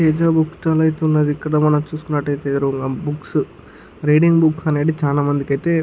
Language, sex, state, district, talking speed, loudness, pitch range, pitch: Telugu, male, Andhra Pradesh, Chittoor, 125 wpm, -18 LUFS, 145-160 Hz, 150 Hz